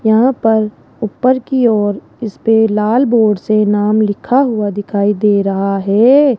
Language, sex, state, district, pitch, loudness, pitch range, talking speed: Hindi, female, Rajasthan, Jaipur, 215 Hz, -13 LUFS, 205-240 Hz, 150 wpm